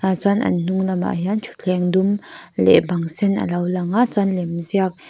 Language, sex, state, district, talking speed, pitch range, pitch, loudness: Mizo, female, Mizoram, Aizawl, 190 wpm, 175-200 Hz, 185 Hz, -19 LUFS